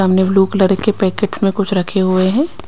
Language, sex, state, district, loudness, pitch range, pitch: Hindi, female, Himachal Pradesh, Shimla, -15 LUFS, 190-200 Hz, 195 Hz